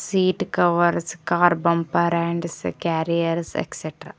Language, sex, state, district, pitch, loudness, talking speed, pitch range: Kannada, female, Karnataka, Koppal, 170 Hz, -22 LUFS, 100 wpm, 165-175 Hz